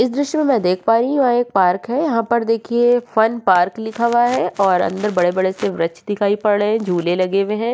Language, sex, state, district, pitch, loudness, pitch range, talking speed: Hindi, female, Uttarakhand, Tehri Garhwal, 220 Hz, -17 LUFS, 185-240 Hz, 255 wpm